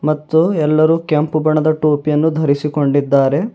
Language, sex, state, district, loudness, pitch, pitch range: Kannada, male, Karnataka, Bidar, -15 LUFS, 155 Hz, 150-155 Hz